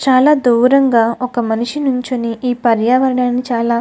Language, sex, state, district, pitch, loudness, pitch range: Telugu, female, Andhra Pradesh, Krishna, 250 Hz, -14 LUFS, 235-255 Hz